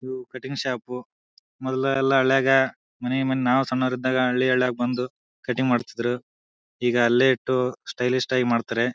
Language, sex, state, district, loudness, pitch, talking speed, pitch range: Kannada, male, Karnataka, Bijapur, -23 LUFS, 125 Hz, 135 wpm, 125-130 Hz